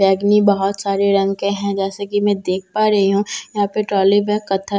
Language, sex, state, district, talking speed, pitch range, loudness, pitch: Hindi, female, Bihar, Katihar, 215 wpm, 195-205 Hz, -17 LUFS, 200 Hz